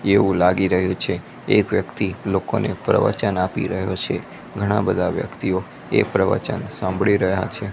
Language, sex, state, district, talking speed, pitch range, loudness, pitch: Gujarati, male, Gujarat, Gandhinagar, 145 wpm, 95-100 Hz, -21 LUFS, 95 Hz